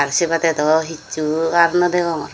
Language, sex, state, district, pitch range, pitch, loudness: Chakma, female, Tripura, Dhalai, 155-170 Hz, 165 Hz, -17 LUFS